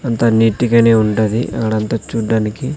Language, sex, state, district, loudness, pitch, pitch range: Telugu, male, Andhra Pradesh, Sri Satya Sai, -15 LUFS, 115 Hz, 110-115 Hz